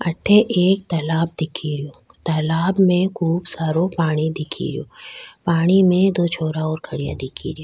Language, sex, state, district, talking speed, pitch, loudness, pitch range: Rajasthani, female, Rajasthan, Churu, 155 wpm, 165 Hz, -19 LUFS, 155-180 Hz